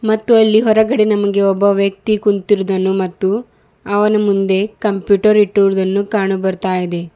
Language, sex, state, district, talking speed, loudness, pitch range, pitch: Kannada, male, Karnataka, Bidar, 125 wpm, -14 LUFS, 195-215 Hz, 200 Hz